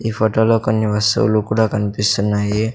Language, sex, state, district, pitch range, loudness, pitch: Telugu, male, Andhra Pradesh, Sri Satya Sai, 105-110 Hz, -17 LUFS, 110 Hz